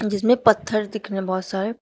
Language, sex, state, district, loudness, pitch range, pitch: Hindi, female, Uttar Pradesh, Shamli, -21 LUFS, 195-220 Hz, 210 Hz